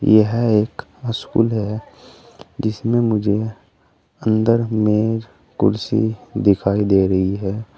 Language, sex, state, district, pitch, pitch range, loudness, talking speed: Hindi, male, Uttar Pradesh, Saharanpur, 110 Hz, 100-115 Hz, -19 LUFS, 100 wpm